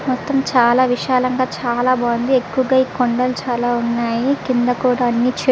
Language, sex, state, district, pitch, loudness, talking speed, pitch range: Telugu, female, Andhra Pradesh, Visakhapatnam, 250 Hz, -17 LUFS, 165 wpm, 240-255 Hz